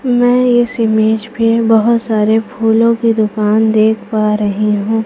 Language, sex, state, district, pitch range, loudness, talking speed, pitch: Hindi, female, Chhattisgarh, Raipur, 215-230 Hz, -12 LUFS, 155 wpm, 220 Hz